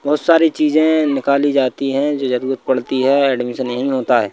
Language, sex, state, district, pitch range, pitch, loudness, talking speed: Hindi, male, Madhya Pradesh, Bhopal, 130-145 Hz, 135 Hz, -16 LUFS, 195 wpm